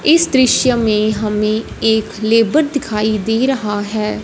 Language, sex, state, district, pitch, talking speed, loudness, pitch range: Hindi, female, Punjab, Fazilka, 220 Hz, 140 wpm, -15 LUFS, 215-255 Hz